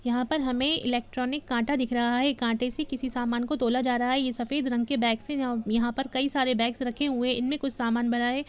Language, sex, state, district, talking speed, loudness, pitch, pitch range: Hindi, female, Jharkhand, Jamtara, 260 wpm, -27 LUFS, 250 Hz, 240-270 Hz